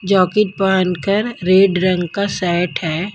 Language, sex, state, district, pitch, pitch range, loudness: Hindi, female, Haryana, Jhajjar, 185 Hz, 180-200 Hz, -16 LUFS